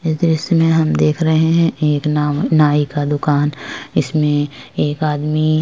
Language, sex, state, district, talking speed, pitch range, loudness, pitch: Hindi, female, Uttar Pradesh, Jyotiba Phule Nagar, 170 wpm, 145-160 Hz, -16 LUFS, 150 Hz